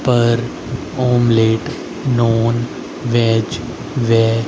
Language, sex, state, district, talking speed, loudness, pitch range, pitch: Hindi, male, Haryana, Rohtak, 65 wpm, -17 LUFS, 115-120 Hz, 115 Hz